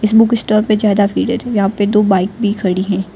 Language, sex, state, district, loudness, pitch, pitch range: Hindi, female, Gujarat, Valsad, -14 LUFS, 210 Hz, 195-215 Hz